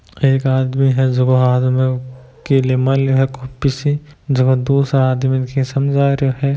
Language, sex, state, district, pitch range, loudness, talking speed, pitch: Hindi, male, Rajasthan, Nagaur, 130-140 Hz, -16 LUFS, 175 wpm, 130 Hz